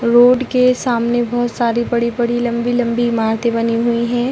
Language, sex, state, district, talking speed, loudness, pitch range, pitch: Hindi, female, Uttar Pradesh, Hamirpur, 155 wpm, -16 LUFS, 235-240 Hz, 240 Hz